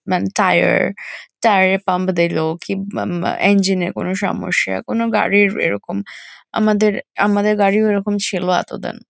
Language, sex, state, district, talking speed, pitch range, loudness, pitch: Bengali, female, West Bengal, Kolkata, 150 wpm, 175-205 Hz, -17 LUFS, 195 Hz